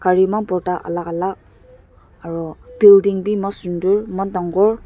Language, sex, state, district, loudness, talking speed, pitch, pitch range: Nagamese, female, Nagaland, Dimapur, -17 LUFS, 150 wpm, 180 Hz, 170-200 Hz